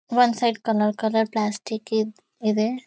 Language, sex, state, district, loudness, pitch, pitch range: Kannada, female, Karnataka, Gulbarga, -23 LUFS, 220 Hz, 215-235 Hz